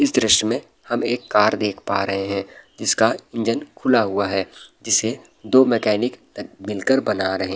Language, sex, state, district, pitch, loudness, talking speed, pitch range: Hindi, male, Bihar, Araria, 105 Hz, -20 LUFS, 180 wpm, 100-120 Hz